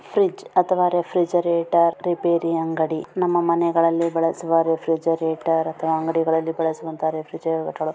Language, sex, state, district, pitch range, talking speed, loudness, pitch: Kannada, female, Karnataka, Dharwad, 160-170 Hz, 105 wpm, -21 LUFS, 165 Hz